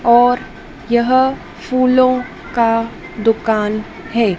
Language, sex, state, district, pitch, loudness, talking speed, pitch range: Hindi, female, Madhya Pradesh, Dhar, 235 Hz, -16 LUFS, 80 wpm, 225-255 Hz